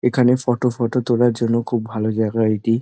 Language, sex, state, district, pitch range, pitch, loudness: Bengali, male, West Bengal, Dakshin Dinajpur, 110-125 Hz, 120 Hz, -19 LUFS